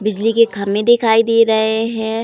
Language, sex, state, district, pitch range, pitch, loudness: Hindi, female, Uttar Pradesh, Varanasi, 220-230 Hz, 225 Hz, -14 LUFS